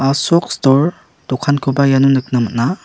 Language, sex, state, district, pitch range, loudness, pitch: Garo, male, Meghalaya, West Garo Hills, 130-145 Hz, -14 LUFS, 135 Hz